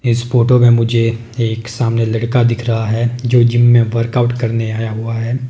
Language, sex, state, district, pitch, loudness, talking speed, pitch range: Hindi, male, Himachal Pradesh, Shimla, 115 Hz, -14 LUFS, 195 wpm, 115-120 Hz